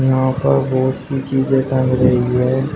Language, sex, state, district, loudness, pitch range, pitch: Hindi, male, Uttar Pradesh, Shamli, -16 LUFS, 130-135 Hz, 130 Hz